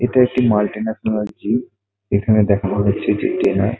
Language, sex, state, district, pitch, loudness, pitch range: Bengali, male, West Bengal, Kolkata, 105 Hz, -18 LUFS, 100-115 Hz